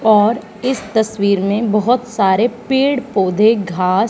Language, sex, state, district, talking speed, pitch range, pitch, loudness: Hindi, female, Haryana, Charkhi Dadri, 130 wpm, 200-240 Hz, 220 Hz, -15 LUFS